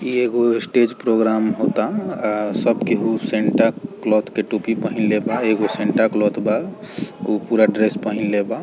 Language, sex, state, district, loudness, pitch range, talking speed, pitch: Bhojpuri, male, Bihar, East Champaran, -19 LUFS, 105-115 Hz, 160 wpm, 110 Hz